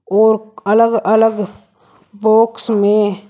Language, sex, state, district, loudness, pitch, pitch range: Hindi, male, Uttar Pradesh, Shamli, -14 LUFS, 215 Hz, 205-225 Hz